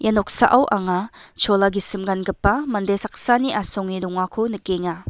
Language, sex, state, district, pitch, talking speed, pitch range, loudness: Garo, female, Meghalaya, West Garo Hills, 200 Hz, 130 wpm, 190-220 Hz, -19 LUFS